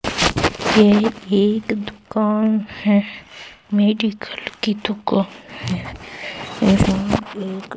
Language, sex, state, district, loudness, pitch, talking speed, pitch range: Hindi, female, Madhya Pradesh, Katni, -19 LUFS, 210 Hz, 75 wpm, 200-220 Hz